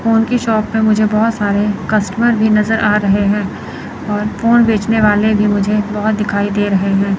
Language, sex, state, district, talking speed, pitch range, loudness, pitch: Hindi, female, Chandigarh, Chandigarh, 200 wpm, 205-220 Hz, -14 LUFS, 210 Hz